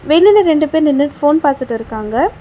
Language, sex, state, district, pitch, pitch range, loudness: Tamil, female, Tamil Nadu, Chennai, 290 Hz, 260-315 Hz, -13 LUFS